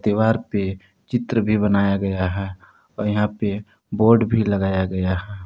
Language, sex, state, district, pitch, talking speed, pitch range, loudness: Hindi, male, Jharkhand, Palamu, 100 Hz, 155 wpm, 95-110 Hz, -21 LUFS